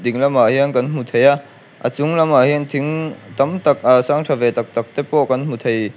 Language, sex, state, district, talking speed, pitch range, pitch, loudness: Mizo, male, Mizoram, Aizawl, 240 wpm, 125-145 Hz, 140 Hz, -17 LUFS